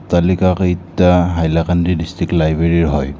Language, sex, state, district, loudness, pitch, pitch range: Assamese, male, Assam, Kamrup Metropolitan, -15 LUFS, 85 Hz, 80-90 Hz